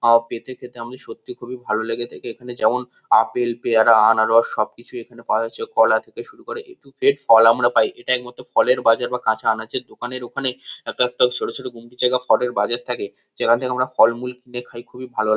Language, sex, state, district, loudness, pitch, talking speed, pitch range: Bengali, male, West Bengal, Kolkata, -19 LUFS, 125 Hz, 210 wpm, 115-125 Hz